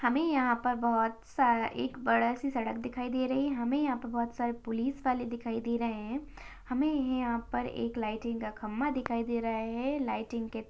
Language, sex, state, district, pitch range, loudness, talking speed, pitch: Hindi, female, Maharashtra, Sindhudurg, 230-255 Hz, -32 LUFS, 200 wpm, 235 Hz